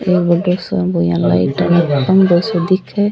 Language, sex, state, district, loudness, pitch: Rajasthani, female, Rajasthan, Churu, -14 LUFS, 175 Hz